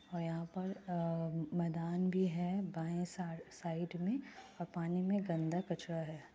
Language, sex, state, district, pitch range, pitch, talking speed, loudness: Hindi, female, Bihar, Kishanganj, 165-185 Hz, 175 Hz, 140 wpm, -39 LUFS